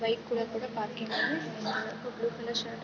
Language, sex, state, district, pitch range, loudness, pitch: Kannada, female, Karnataka, Bellary, 225-235 Hz, -33 LUFS, 230 Hz